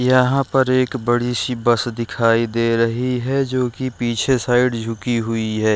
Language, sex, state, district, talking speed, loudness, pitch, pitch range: Hindi, male, Chhattisgarh, Raigarh, 175 wpm, -19 LUFS, 120 Hz, 115-130 Hz